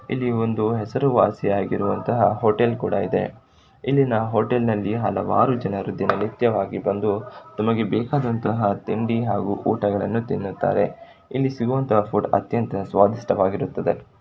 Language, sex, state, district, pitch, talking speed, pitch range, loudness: Kannada, male, Karnataka, Shimoga, 110 Hz, 120 wpm, 105-120 Hz, -22 LUFS